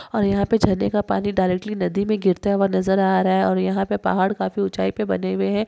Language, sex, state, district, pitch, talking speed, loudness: Hindi, female, Rajasthan, Nagaur, 185 Hz, 265 wpm, -21 LUFS